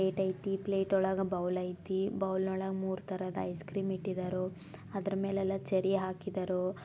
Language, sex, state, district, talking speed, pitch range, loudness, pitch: Kannada, female, Karnataka, Belgaum, 150 wpm, 185-195 Hz, -34 LUFS, 190 Hz